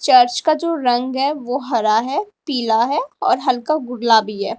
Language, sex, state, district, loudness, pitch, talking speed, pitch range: Hindi, female, Uttar Pradesh, Lalitpur, -18 LUFS, 255 Hz, 185 wpm, 240-310 Hz